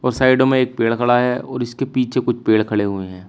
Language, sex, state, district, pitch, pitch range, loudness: Hindi, male, Uttar Pradesh, Shamli, 125 Hz, 110-130 Hz, -18 LUFS